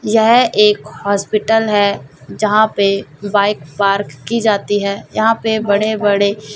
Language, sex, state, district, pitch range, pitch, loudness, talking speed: Hindi, female, Chhattisgarh, Raipur, 200-220 Hz, 205 Hz, -15 LUFS, 135 wpm